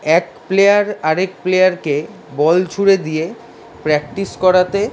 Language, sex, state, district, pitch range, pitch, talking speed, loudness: Bengali, male, West Bengal, Dakshin Dinajpur, 160-195 Hz, 185 Hz, 135 wpm, -16 LUFS